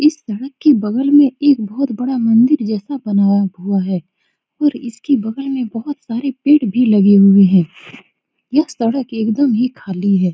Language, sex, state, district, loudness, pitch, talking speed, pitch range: Hindi, female, Bihar, Saran, -15 LUFS, 240 Hz, 180 wpm, 205-275 Hz